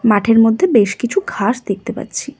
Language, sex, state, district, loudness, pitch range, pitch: Bengali, female, West Bengal, Cooch Behar, -15 LUFS, 200-240 Hz, 225 Hz